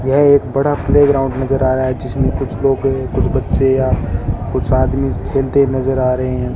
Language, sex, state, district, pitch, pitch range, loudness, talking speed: Hindi, male, Rajasthan, Bikaner, 130 Hz, 130-135 Hz, -15 LUFS, 190 wpm